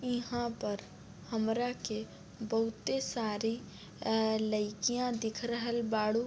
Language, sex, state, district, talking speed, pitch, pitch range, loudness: Bhojpuri, female, Uttar Pradesh, Deoria, 105 wpm, 225 Hz, 215-235 Hz, -34 LUFS